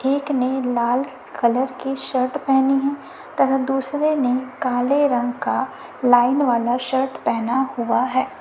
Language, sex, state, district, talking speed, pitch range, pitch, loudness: Hindi, female, Chhattisgarh, Raipur, 145 wpm, 245-270 Hz, 260 Hz, -20 LUFS